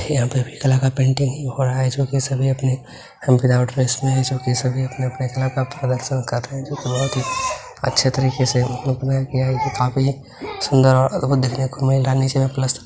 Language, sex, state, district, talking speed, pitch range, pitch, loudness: Maithili, male, Bihar, Begusarai, 170 wpm, 130-135 Hz, 130 Hz, -19 LUFS